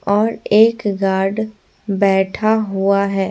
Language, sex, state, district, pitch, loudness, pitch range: Hindi, female, Bihar, Patna, 200 Hz, -16 LUFS, 195-215 Hz